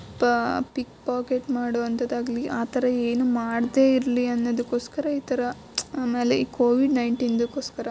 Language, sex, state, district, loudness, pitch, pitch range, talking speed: Kannada, female, Karnataka, Dakshina Kannada, -24 LUFS, 245 Hz, 240-255 Hz, 135 wpm